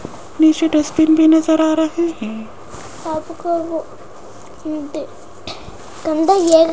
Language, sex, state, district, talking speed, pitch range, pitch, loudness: Hindi, female, Rajasthan, Jaipur, 60 wpm, 310-330 Hz, 320 Hz, -16 LUFS